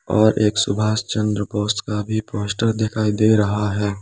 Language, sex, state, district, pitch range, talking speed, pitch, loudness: Hindi, male, Jharkhand, Palamu, 105-110 Hz, 180 wpm, 105 Hz, -20 LUFS